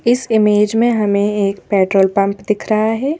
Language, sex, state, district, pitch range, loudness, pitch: Hindi, female, Madhya Pradesh, Bhopal, 200-225 Hz, -15 LUFS, 210 Hz